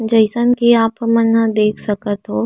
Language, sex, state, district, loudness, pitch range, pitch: Chhattisgarhi, female, Chhattisgarh, Rajnandgaon, -15 LUFS, 210-230 Hz, 225 Hz